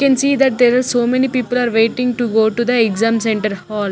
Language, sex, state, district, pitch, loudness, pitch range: English, female, Chandigarh, Chandigarh, 240 Hz, -15 LUFS, 225-250 Hz